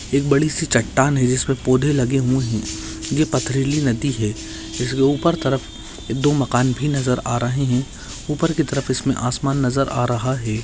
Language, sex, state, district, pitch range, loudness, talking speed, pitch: Hindi, male, Maharashtra, Aurangabad, 120-140 Hz, -20 LUFS, 180 wpm, 130 Hz